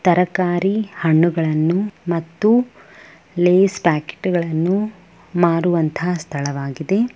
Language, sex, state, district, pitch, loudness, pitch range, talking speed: Kannada, female, Karnataka, Bellary, 175 Hz, -19 LUFS, 165-190 Hz, 65 wpm